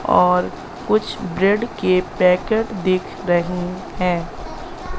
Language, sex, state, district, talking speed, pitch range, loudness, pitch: Hindi, female, Madhya Pradesh, Katni, 95 wpm, 180-215 Hz, -19 LUFS, 185 Hz